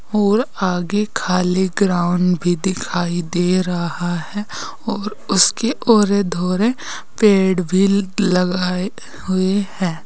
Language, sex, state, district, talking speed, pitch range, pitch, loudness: Hindi, female, Uttar Pradesh, Saharanpur, 105 wpm, 180-205 Hz, 190 Hz, -18 LUFS